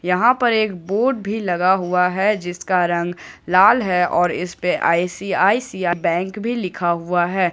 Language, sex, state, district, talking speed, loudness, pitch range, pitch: Hindi, male, Jharkhand, Ranchi, 165 wpm, -19 LUFS, 175-205 Hz, 180 Hz